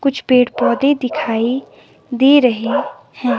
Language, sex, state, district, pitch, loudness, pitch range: Hindi, female, Himachal Pradesh, Shimla, 255 Hz, -15 LUFS, 245-275 Hz